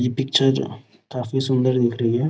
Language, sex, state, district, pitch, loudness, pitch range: Hindi, male, Bihar, Gopalganj, 125 Hz, -21 LUFS, 120-135 Hz